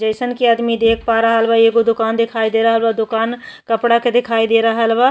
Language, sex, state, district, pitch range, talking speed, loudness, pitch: Bhojpuri, female, Uttar Pradesh, Ghazipur, 225-235 Hz, 235 wpm, -15 LUFS, 230 Hz